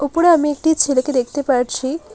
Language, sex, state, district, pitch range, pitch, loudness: Bengali, female, West Bengal, Alipurduar, 260-320 Hz, 285 Hz, -17 LUFS